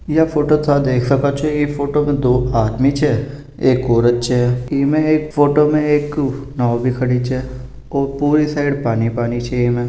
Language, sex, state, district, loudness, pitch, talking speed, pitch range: Marwari, male, Rajasthan, Nagaur, -16 LUFS, 140 Hz, 180 wpm, 125-145 Hz